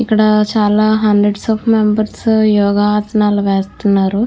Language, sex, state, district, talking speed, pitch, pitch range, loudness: Telugu, female, Andhra Pradesh, Krishna, 115 wpm, 210 Hz, 205-215 Hz, -13 LUFS